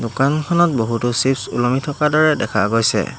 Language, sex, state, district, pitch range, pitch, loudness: Assamese, male, Assam, Hailakandi, 115-150 Hz, 130 Hz, -17 LUFS